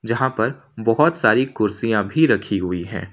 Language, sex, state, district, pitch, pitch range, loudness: Hindi, male, Jharkhand, Ranchi, 115 Hz, 105-130 Hz, -19 LUFS